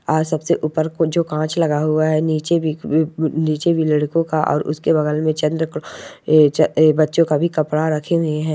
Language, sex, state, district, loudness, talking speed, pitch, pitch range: Hindi, female, Rajasthan, Churu, -18 LUFS, 175 wpm, 155 Hz, 155-160 Hz